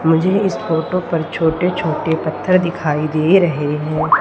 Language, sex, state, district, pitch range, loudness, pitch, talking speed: Hindi, female, Madhya Pradesh, Umaria, 155-180 Hz, -17 LUFS, 160 Hz, 155 wpm